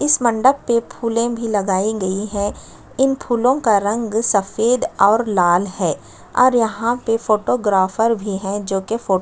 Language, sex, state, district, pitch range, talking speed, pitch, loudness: Hindi, female, Chhattisgarh, Sukma, 200-235 Hz, 170 wpm, 220 Hz, -18 LUFS